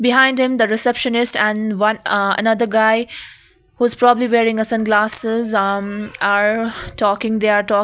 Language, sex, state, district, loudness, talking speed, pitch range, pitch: English, female, Sikkim, Gangtok, -16 LUFS, 155 wpm, 210-235 Hz, 220 Hz